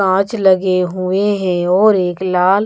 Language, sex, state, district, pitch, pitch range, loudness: Hindi, female, Bihar, Patna, 185 Hz, 185-195 Hz, -14 LUFS